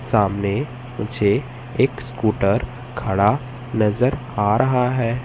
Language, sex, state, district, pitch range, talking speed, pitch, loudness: Hindi, male, Madhya Pradesh, Katni, 105-125 Hz, 105 wpm, 125 Hz, -21 LUFS